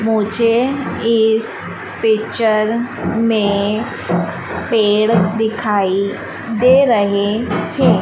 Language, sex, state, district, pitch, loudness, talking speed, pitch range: Hindi, female, Madhya Pradesh, Dhar, 220 Hz, -16 LUFS, 65 wpm, 210-230 Hz